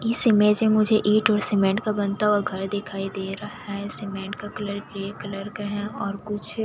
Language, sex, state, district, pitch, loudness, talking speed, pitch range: Hindi, female, Chhattisgarh, Jashpur, 205 Hz, -24 LUFS, 225 wpm, 200-210 Hz